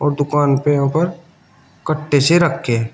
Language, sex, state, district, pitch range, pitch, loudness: Hindi, male, Uttar Pradesh, Shamli, 140-170 Hz, 145 Hz, -16 LUFS